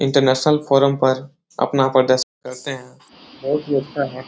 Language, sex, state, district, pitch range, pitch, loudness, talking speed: Hindi, male, Uttar Pradesh, Etah, 130-140 Hz, 135 Hz, -19 LUFS, 155 wpm